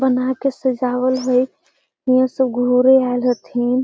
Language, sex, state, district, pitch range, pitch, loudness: Magahi, female, Bihar, Gaya, 250-260 Hz, 255 Hz, -17 LUFS